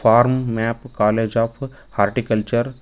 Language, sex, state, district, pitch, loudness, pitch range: Kannada, male, Karnataka, Koppal, 115 Hz, -20 LUFS, 110-125 Hz